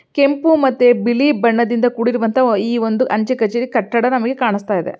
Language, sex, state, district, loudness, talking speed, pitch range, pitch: Kannada, female, Karnataka, Belgaum, -15 LUFS, 155 wpm, 230-255 Hz, 240 Hz